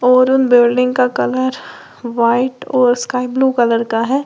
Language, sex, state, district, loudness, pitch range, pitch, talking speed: Hindi, female, Uttar Pradesh, Lalitpur, -14 LUFS, 240-260 Hz, 250 Hz, 170 wpm